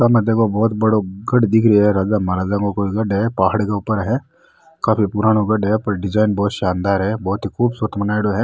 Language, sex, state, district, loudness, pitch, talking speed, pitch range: Rajasthani, male, Rajasthan, Nagaur, -18 LUFS, 105 Hz, 230 wpm, 100-110 Hz